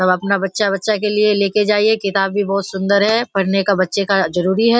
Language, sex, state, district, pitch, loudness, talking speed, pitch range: Hindi, female, Bihar, Kishanganj, 200 Hz, -16 LUFS, 225 wpm, 195-210 Hz